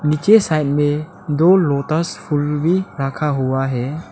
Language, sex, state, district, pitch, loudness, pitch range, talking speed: Hindi, male, Arunachal Pradesh, Lower Dibang Valley, 150 Hz, -17 LUFS, 140-160 Hz, 145 wpm